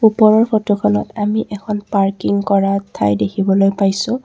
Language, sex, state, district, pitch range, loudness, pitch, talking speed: Assamese, female, Assam, Kamrup Metropolitan, 195-215 Hz, -16 LUFS, 200 Hz, 125 wpm